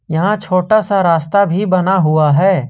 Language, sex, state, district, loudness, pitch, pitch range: Hindi, male, Jharkhand, Ranchi, -13 LUFS, 185 Hz, 160-200 Hz